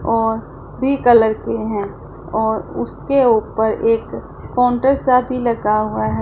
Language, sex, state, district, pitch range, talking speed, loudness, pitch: Hindi, female, Punjab, Pathankot, 220-250 Hz, 145 wpm, -17 LUFS, 225 Hz